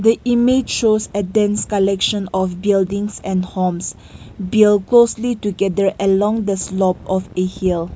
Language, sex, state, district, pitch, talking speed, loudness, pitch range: English, female, Nagaland, Kohima, 200 Hz, 135 wpm, -17 LUFS, 190-215 Hz